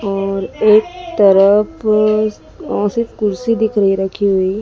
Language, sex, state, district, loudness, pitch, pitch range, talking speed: Hindi, female, Madhya Pradesh, Dhar, -14 LUFS, 210 Hz, 195-220 Hz, 140 wpm